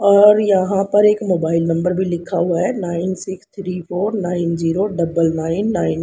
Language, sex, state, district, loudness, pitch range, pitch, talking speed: Hindi, female, Haryana, Rohtak, -17 LUFS, 170-195 Hz, 180 Hz, 200 wpm